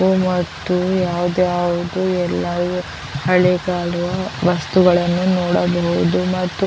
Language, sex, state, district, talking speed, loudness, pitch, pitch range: Kannada, female, Karnataka, Chamarajanagar, 100 wpm, -18 LUFS, 180 Hz, 175-185 Hz